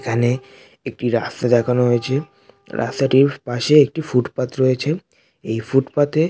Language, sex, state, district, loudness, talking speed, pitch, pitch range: Bengali, male, West Bengal, North 24 Parganas, -19 LUFS, 125 wpm, 130 Hz, 120-135 Hz